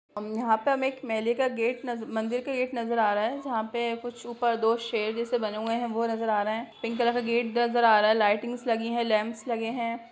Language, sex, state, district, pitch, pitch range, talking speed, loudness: Hindi, female, Bihar, Purnia, 230 Hz, 220-240 Hz, 250 wpm, -27 LUFS